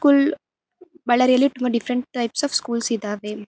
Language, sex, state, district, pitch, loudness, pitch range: Kannada, female, Karnataka, Bellary, 250 Hz, -21 LUFS, 235-285 Hz